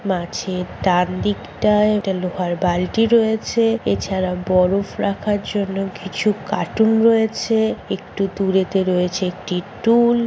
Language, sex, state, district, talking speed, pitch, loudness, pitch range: Bengali, female, West Bengal, Kolkata, 115 wpm, 195 Hz, -19 LUFS, 185-220 Hz